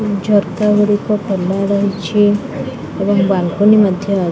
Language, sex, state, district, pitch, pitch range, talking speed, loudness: Odia, female, Odisha, Khordha, 200 Hz, 195-210 Hz, 85 wpm, -15 LUFS